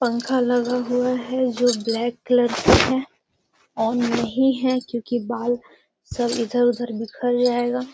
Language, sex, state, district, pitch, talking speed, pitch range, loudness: Magahi, female, Bihar, Gaya, 245 Hz, 135 wpm, 235-250 Hz, -21 LUFS